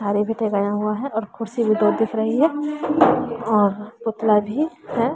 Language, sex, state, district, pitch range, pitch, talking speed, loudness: Hindi, female, Bihar, West Champaran, 210-235 Hz, 220 Hz, 175 wpm, -21 LUFS